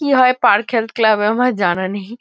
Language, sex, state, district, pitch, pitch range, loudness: Bengali, female, West Bengal, Kolkata, 225 Hz, 205-250 Hz, -15 LUFS